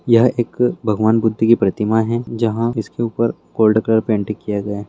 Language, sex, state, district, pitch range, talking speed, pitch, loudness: Hindi, male, Bihar, Jamui, 105-115 Hz, 195 wpm, 110 Hz, -17 LUFS